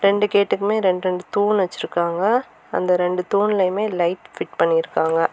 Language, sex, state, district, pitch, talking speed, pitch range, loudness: Tamil, female, Tamil Nadu, Kanyakumari, 195 Hz, 135 wpm, 180-210 Hz, -20 LUFS